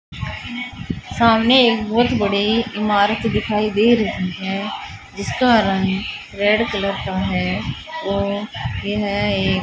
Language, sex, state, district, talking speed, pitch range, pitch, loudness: Hindi, female, Haryana, Charkhi Dadri, 120 wpm, 195-230 Hz, 210 Hz, -19 LUFS